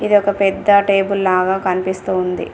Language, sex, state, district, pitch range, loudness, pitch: Telugu, female, Telangana, Komaram Bheem, 185-200 Hz, -16 LUFS, 195 Hz